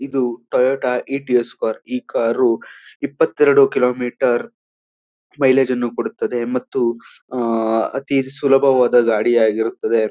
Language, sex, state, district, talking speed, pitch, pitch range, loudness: Kannada, male, Karnataka, Mysore, 90 wpm, 125 Hz, 120-135 Hz, -18 LUFS